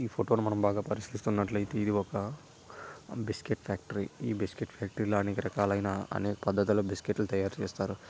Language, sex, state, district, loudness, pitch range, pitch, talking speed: Telugu, male, Telangana, Nalgonda, -32 LUFS, 100-105 Hz, 105 Hz, 165 wpm